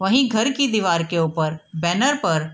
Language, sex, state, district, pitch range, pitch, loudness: Hindi, female, Bihar, East Champaran, 160-240 Hz, 170 Hz, -20 LUFS